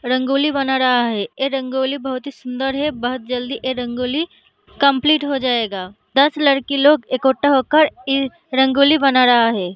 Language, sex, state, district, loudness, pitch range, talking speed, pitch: Hindi, female, Uttar Pradesh, Deoria, -17 LUFS, 250-280 Hz, 165 wpm, 265 Hz